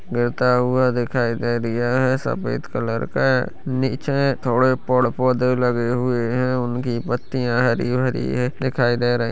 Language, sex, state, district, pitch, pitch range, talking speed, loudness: Hindi, female, Chhattisgarh, Balrampur, 125 Hz, 120-130 Hz, 150 wpm, -20 LUFS